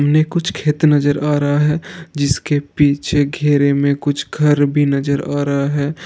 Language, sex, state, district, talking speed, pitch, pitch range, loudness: Hindi, male, Bihar, Jahanabad, 180 wpm, 145 Hz, 140-150 Hz, -16 LUFS